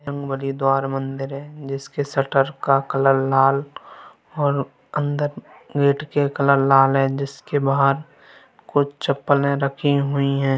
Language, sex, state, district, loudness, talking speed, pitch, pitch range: Hindi, male, Bihar, Gaya, -20 LUFS, 125 wpm, 140 Hz, 135-140 Hz